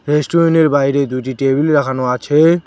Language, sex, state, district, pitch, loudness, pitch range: Bengali, male, West Bengal, Cooch Behar, 145 Hz, -14 LUFS, 135-155 Hz